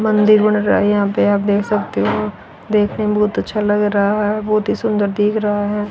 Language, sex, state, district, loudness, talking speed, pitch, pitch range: Hindi, female, Haryana, Rohtak, -16 LUFS, 235 wpm, 210 Hz, 205-210 Hz